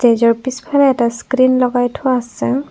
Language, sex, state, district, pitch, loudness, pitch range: Assamese, female, Assam, Kamrup Metropolitan, 255 Hz, -15 LUFS, 240-265 Hz